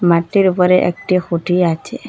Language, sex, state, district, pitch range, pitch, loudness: Bengali, female, Assam, Hailakandi, 170-190 Hz, 180 Hz, -15 LUFS